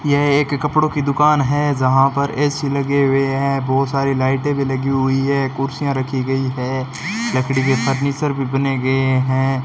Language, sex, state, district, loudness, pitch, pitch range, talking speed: Hindi, male, Rajasthan, Bikaner, -18 LUFS, 135 Hz, 135-140 Hz, 185 wpm